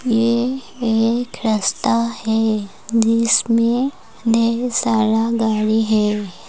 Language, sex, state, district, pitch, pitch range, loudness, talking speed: Hindi, female, Rajasthan, Churu, 230 Hz, 220-235 Hz, -18 LUFS, 85 wpm